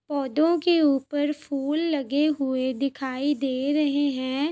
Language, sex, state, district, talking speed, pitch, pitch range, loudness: Hindi, female, Chhattisgarh, Bastar, 135 wpm, 285 Hz, 270-300 Hz, -24 LUFS